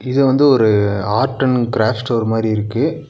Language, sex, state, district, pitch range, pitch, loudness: Tamil, male, Tamil Nadu, Nilgiris, 110-135 Hz, 120 Hz, -16 LUFS